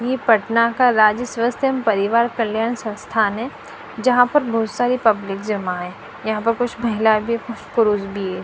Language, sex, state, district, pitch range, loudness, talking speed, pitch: Hindi, female, Punjab, Fazilka, 215-240 Hz, -19 LUFS, 185 wpm, 230 Hz